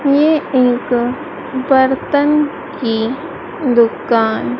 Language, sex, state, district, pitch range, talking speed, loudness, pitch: Hindi, female, Madhya Pradesh, Dhar, 240-290 Hz, 65 wpm, -15 LUFS, 260 Hz